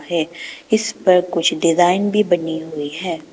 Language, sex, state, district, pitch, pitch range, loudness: Hindi, female, Arunachal Pradesh, Papum Pare, 175 Hz, 165-190 Hz, -18 LUFS